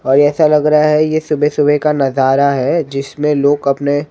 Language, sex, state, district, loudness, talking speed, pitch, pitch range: Hindi, male, Maharashtra, Mumbai Suburban, -13 LUFS, 190 wpm, 145 Hz, 140-150 Hz